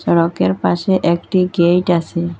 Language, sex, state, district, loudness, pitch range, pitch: Bengali, female, Assam, Hailakandi, -16 LUFS, 170-180 Hz, 170 Hz